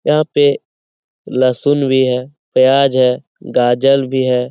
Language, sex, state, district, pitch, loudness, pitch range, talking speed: Hindi, male, Bihar, Lakhisarai, 130 Hz, -14 LUFS, 125-140 Hz, 135 wpm